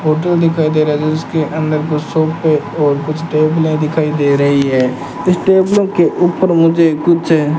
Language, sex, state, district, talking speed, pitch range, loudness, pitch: Hindi, male, Rajasthan, Bikaner, 180 wpm, 150-165 Hz, -13 LUFS, 155 Hz